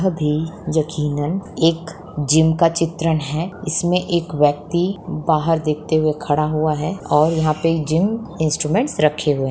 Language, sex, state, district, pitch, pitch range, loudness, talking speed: Hindi, female, Bihar, Begusarai, 160 Hz, 150-170 Hz, -19 LUFS, 140 wpm